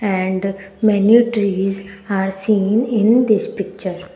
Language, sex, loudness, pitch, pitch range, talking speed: English, female, -17 LUFS, 200 Hz, 195-215 Hz, 115 wpm